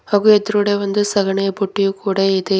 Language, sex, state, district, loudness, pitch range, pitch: Kannada, female, Karnataka, Bidar, -17 LUFS, 195-205 Hz, 200 Hz